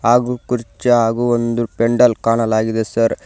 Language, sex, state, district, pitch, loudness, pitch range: Kannada, male, Karnataka, Koppal, 115 Hz, -16 LUFS, 115-120 Hz